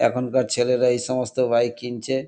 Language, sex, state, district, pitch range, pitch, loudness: Bengali, male, West Bengal, Kolkata, 120-130 Hz, 125 Hz, -22 LUFS